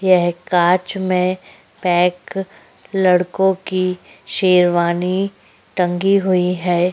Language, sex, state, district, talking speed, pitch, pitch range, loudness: Hindi, female, Uttar Pradesh, Jyotiba Phule Nagar, 85 wpm, 180 Hz, 180-190 Hz, -17 LUFS